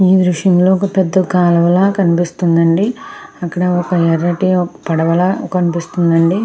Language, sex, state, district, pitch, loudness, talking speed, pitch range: Telugu, female, Andhra Pradesh, Krishna, 180 Hz, -14 LUFS, 130 wpm, 170-190 Hz